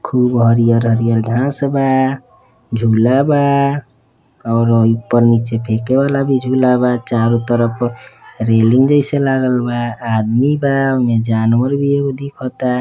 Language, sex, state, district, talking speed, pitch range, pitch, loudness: Bhojpuri, male, Uttar Pradesh, Deoria, 135 wpm, 115-135 Hz, 125 Hz, -14 LUFS